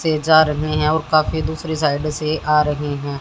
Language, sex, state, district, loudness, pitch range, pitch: Hindi, female, Haryana, Jhajjar, -18 LUFS, 150-155 Hz, 155 Hz